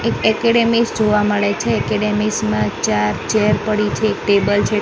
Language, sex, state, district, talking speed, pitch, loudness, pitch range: Gujarati, female, Maharashtra, Mumbai Suburban, 175 wpm, 210 Hz, -17 LUFS, 205-220 Hz